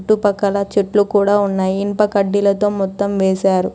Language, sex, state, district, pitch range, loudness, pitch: Telugu, female, Telangana, Hyderabad, 195-205 Hz, -16 LUFS, 200 Hz